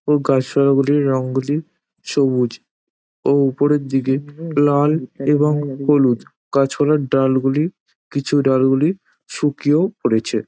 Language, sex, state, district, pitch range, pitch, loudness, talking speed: Bengali, male, West Bengal, Dakshin Dinajpur, 135-150 Hz, 140 Hz, -18 LUFS, 120 wpm